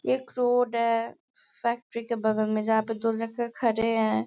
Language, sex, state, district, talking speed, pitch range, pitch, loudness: Hindi, female, Bihar, Sitamarhi, 185 wpm, 220-235 Hz, 230 Hz, -27 LUFS